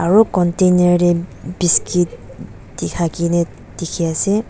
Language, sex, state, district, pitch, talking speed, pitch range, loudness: Nagamese, female, Nagaland, Dimapur, 175 Hz, 105 wpm, 165-180 Hz, -16 LUFS